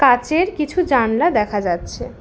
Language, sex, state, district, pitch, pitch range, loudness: Bengali, female, West Bengal, Alipurduar, 255 Hz, 215-315 Hz, -18 LUFS